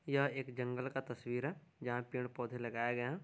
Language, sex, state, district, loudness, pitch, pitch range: Hindi, male, Bihar, Purnia, -40 LUFS, 125 Hz, 120-140 Hz